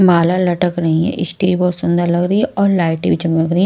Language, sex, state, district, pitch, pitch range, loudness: Hindi, female, Maharashtra, Washim, 175 Hz, 170-185 Hz, -15 LUFS